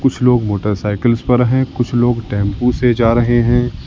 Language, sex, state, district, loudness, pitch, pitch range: Hindi, male, Uttar Pradesh, Lalitpur, -15 LUFS, 120 Hz, 105-125 Hz